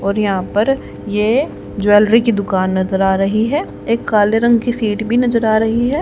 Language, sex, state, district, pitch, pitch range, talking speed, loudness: Hindi, female, Haryana, Rohtak, 220 Hz, 205-235 Hz, 210 wpm, -15 LUFS